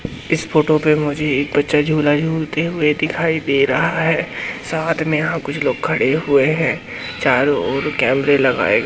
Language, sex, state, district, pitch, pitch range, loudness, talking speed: Hindi, male, Madhya Pradesh, Umaria, 155 Hz, 145-160 Hz, -17 LUFS, 170 wpm